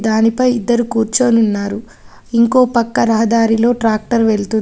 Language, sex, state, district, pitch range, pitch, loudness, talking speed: Telugu, female, Telangana, Adilabad, 220-240 Hz, 230 Hz, -14 LUFS, 105 wpm